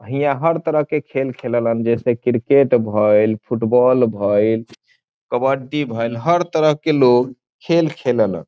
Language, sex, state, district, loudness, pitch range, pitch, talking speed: Bhojpuri, male, Bihar, Saran, -17 LUFS, 115-145 Hz, 125 Hz, 135 wpm